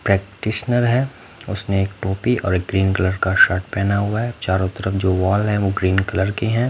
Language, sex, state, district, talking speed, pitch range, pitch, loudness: Hindi, male, Bihar, Katihar, 205 wpm, 95-110 Hz, 100 Hz, -19 LUFS